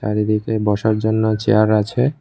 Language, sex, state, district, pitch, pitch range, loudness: Bengali, male, Tripura, West Tripura, 110 Hz, 105-110 Hz, -17 LUFS